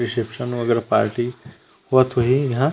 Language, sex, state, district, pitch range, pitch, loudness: Chhattisgarhi, male, Chhattisgarh, Rajnandgaon, 120-130 Hz, 120 Hz, -20 LUFS